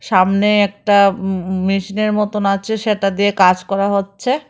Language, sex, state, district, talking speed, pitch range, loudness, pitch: Bengali, female, Tripura, West Tripura, 160 wpm, 195-210 Hz, -16 LUFS, 200 Hz